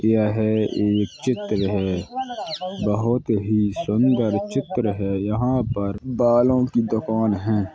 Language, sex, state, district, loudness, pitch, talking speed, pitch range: Hindi, male, Uttar Pradesh, Hamirpur, -22 LUFS, 110 Hz, 140 wpm, 105-125 Hz